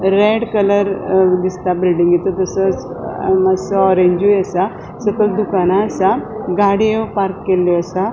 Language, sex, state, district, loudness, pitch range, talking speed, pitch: Konkani, female, Goa, North and South Goa, -15 LUFS, 185-205 Hz, 110 wpm, 190 Hz